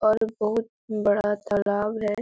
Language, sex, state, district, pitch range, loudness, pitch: Hindi, female, Uttar Pradesh, Etah, 205-220 Hz, -25 LUFS, 210 Hz